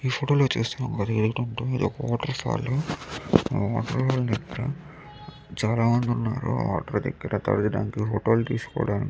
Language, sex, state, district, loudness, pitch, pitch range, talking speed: Telugu, male, Andhra Pradesh, Chittoor, -26 LUFS, 120 Hz, 110-135 Hz, 120 wpm